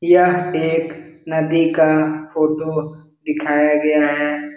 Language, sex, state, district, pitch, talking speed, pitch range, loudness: Hindi, male, Bihar, Jahanabad, 155 Hz, 105 wpm, 150-160 Hz, -17 LUFS